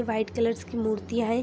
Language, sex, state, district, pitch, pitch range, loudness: Hindi, female, Jharkhand, Sahebganj, 230 Hz, 220-235 Hz, -28 LUFS